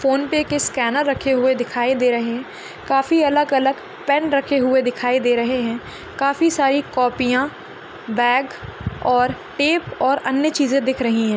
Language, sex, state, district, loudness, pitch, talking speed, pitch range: Hindi, female, Rajasthan, Churu, -19 LUFS, 270 Hz, 220 wpm, 250-290 Hz